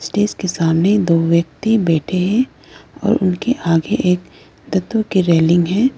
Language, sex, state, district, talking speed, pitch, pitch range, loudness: Hindi, female, Arunachal Pradesh, Lower Dibang Valley, 130 wpm, 180 Hz, 170-205 Hz, -16 LUFS